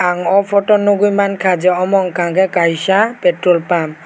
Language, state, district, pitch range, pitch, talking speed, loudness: Kokborok, Tripura, West Tripura, 175-200 Hz, 185 Hz, 190 wpm, -14 LUFS